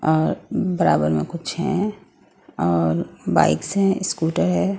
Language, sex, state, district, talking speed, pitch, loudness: Hindi, female, Maharashtra, Gondia, 125 wpm, 165 Hz, -21 LUFS